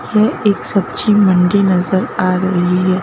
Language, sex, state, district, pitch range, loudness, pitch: Hindi, female, Madhya Pradesh, Bhopal, 185-205 Hz, -14 LUFS, 190 Hz